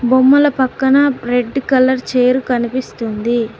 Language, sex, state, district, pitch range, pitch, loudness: Telugu, female, Telangana, Mahabubabad, 245-265 Hz, 255 Hz, -14 LUFS